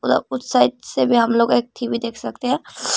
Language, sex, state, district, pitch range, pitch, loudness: Hindi, female, Tripura, Unakoti, 235-240 Hz, 235 Hz, -19 LUFS